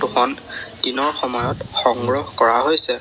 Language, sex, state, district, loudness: Assamese, male, Assam, Sonitpur, -18 LUFS